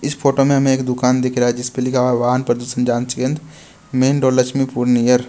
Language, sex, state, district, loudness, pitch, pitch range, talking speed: Hindi, male, Bihar, West Champaran, -17 LUFS, 125 Hz, 125-135 Hz, 250 wpm